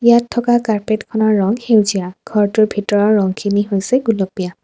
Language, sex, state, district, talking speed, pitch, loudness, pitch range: Assamese, female, Assam, Kamrup Metropolitan, 130 wpm, 210 Hz, -16 LUFS, 200-225 Hz